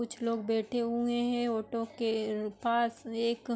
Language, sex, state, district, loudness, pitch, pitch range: Hindi, female, Uttar Pradesh, Hamirpur, -32 LUFS, 230 Hz, 225-235 Hz